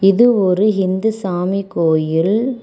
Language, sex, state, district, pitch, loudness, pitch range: Tamil, female, Tamil Nadu, Kanyakumari, 195 Hz, -16 LUFS, 180-220 Hz